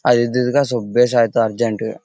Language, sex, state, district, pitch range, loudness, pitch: Kannada, male, Karnataka, Bellary, 115-125 Hz, -17 LUFS, 120 Hz